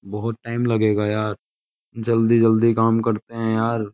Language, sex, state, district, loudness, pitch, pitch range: Hindi, male, Uttar Pradesh, Jyotiba Phule Nagar, -20 LUFS, 115 Hz, 110-115 Hz